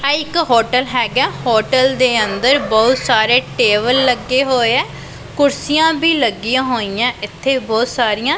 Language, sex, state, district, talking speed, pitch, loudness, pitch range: Punjabi, female, Punjab, Pathankot, 145 wpm, 250 Hz, -14 LUFS, 230-270 Hz